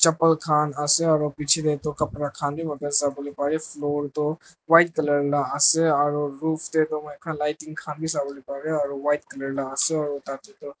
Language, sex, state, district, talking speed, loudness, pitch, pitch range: Nagamese, male, Nagaland, Dimapur, 190 wpm, -24 LUFS, 150 Hz, 145-155 Hz